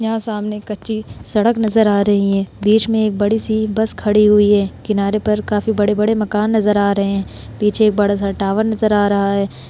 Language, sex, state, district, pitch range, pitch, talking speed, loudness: Hindi, female, Uttar Pradesh, Hamirpur, 205-220 Hz, 210 Hz, 200 wpm, -16 LUFS